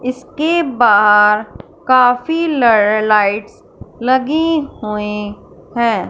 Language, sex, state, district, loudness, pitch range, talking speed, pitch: Hindi, female, Punjab, Fazilka, -14 LUFS, 210-275 Hz, 80 wpm, 235 Hz